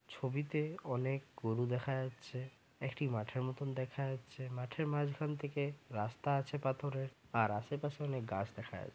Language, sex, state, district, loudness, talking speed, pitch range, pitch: Bengali, male, West Bengal, Jalpaiguri, -40 LUFS, 155 wpm, 125-145 Hz, 135 Hz